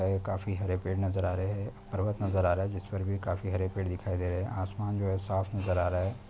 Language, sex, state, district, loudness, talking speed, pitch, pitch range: Hindi, male, Chhattisgarh, Balrampur, -32 LUFS, 275 wpm, 95 Hz, 95-100 Hz